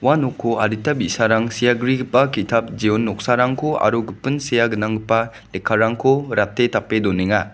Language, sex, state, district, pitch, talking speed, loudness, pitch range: Garo, male, Meghalaya, West Garo Hills, 115 Hz, 135 wpm, -19 LUFS, 110-125 Hz